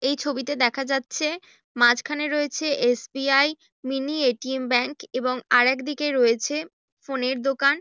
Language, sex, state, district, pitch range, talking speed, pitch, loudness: Bengali, female, West Bengal, Jhargram, 255-290 Hz, 130 wpm, 270 Hz, -23 LUFS